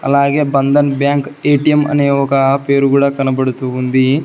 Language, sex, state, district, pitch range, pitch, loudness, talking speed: Telugu, male, Telangana, Hyderabad, 135-140 Hz, 140 Hz, -13 LUFS, 140 wpm